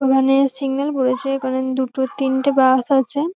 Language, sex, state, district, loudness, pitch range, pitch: Bengali, female, West Bengal, North 24 Parganas, -18 LUFS, 260-275 Hz, 265 Hz